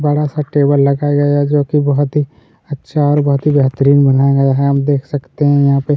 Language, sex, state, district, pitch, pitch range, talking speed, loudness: Hindi, male, Chhattisgarh, Kabirdham, 145 Hz, 140-145 Hz, 250 wpm, -13 LUFS